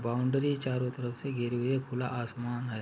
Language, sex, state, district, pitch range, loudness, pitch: Hindi, male, Uttar Pradesh, Muzaffarnagar, 120-130 Hz, -33 LUFS, 125 Hz